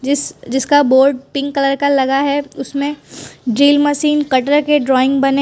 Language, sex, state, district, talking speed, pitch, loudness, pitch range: Hindi, female, Gujarat, Valsad, 175 wpm, 280 Hz, -14 LUFS, 270-290 Hz